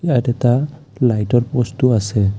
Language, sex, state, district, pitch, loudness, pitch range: Assamese, male, Assam, Kamrup Metropolitan, 125 Hz, -17 LUFS, 115-130 Hz